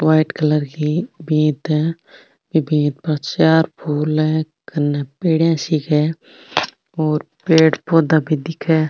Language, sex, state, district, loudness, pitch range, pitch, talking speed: Marwari, female, Rajasthan, Nagaur, -18 LUFS, 150-160 Hz, 155 Hz, 140 wpm